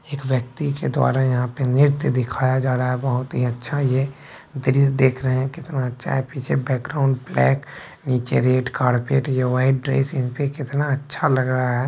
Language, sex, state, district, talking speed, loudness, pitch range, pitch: Maithili, male, Bihar, Begusarai, 185 wpm, -21 LUFS, 125-140 Hz, 130 Hz